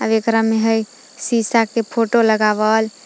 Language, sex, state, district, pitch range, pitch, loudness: Magahi, female, Jharkhand, Palamu, 220-230 Hz, 225 Hz, -17 LUFS